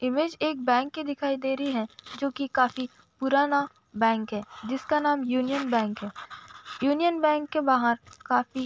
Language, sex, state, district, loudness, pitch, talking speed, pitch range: Hindi, female, Uttar Pradesh, Budaun, -27 LUFS, 270 Hz, 175 wpm, 250-295 Hz